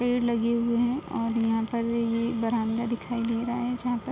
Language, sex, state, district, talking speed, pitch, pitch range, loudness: Hindi, female, Uttar Pradesh, Muzaffarnagar, 235 wpm, 235 Hz, 230-240 Hz, -27 LUFS